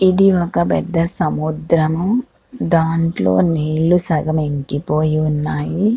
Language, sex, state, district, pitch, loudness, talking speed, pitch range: Telugu, female, Andhra Pradesh, Krishna, 165 Hz, -17 LUFS, 90 wpm, 155-175 Hz